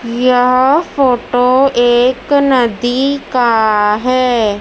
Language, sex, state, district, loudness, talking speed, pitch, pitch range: Hindi, female, Madhya Pradesh, Dhar, -12 LUFS, 80 wpm, 250 Hz, 240-260 Hz